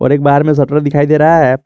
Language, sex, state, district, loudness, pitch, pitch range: Hindi, male, Jharkhand, Garhwa, -10 LUFS, 145 Hz, 140-150 Hz